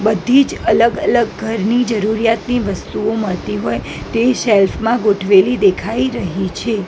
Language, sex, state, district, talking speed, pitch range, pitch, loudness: Gujarati, female, Gujarat, Gandhinagar, 130 wpm, 205-235 Hz, 220 Hz, -15 LUFS